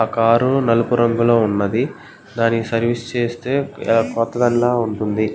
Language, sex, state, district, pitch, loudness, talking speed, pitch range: Telugu, male, Andhra Pradesh, Guntur, 115 Hz, -18 LUFS, 110 wpm, 115-120 Hz